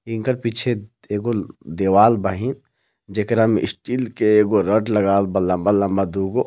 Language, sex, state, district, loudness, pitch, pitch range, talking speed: Bhojpuri, male, Jharkhand, Palamu, -19 LUFS, 105 Hz, 100-115 Hz, 160 wpm